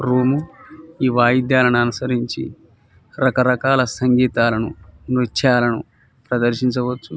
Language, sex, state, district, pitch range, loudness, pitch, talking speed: Telugu, male, Telangana, Nalgonda, 120-130 Hz, -18 LUFS, 125 Hz, 65 wpm